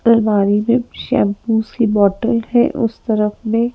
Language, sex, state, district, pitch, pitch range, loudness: Hindi, female, Madhya Pradesh, Bhopal, 225 Hz, 210-235 Hz, -16 LUFS